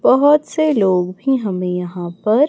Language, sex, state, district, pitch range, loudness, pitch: Hindi, female, Chhattisgarh, Raipur, 180-285 Hz, -17 LUFS, 210 Hz